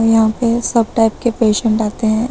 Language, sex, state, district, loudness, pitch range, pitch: Hindi, female, Maharashtra, Mumbai Suburban, -15 LUFS, 220-235 Hz, 225 Hz